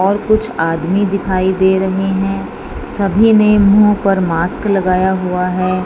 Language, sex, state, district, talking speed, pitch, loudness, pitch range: Hindi, female, Punjab, Fazilka, 155 wpm, 195 Hz, -14 LUFS, 185-205 Hz